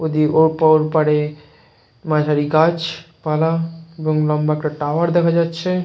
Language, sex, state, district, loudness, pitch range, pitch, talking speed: Bengali, male, West Bengal, Jalpaiguri, -18 LUFS, 150-165 Hz, 155 Hz, 135 wpm